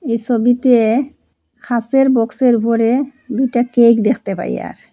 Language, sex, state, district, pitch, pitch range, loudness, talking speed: Bengali, female, Assam, Hailakandi, 240 Hz, 230-260 Hz, -15 LUFS, 120 wpm